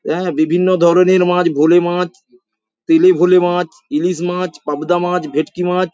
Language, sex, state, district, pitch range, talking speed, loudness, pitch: Bengali, male, West Bengal, Paschim Medinipur, 175-185 Hz, 160 wpm, -14 LUFS, 180 Hz